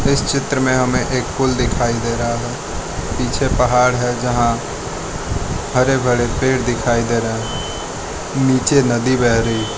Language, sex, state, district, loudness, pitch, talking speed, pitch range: Hindi, male, Arunachal Pradesh, Lower Dibang Valley, -18 LUFS, 125 Hz, 160 wpm, 115-130 Hz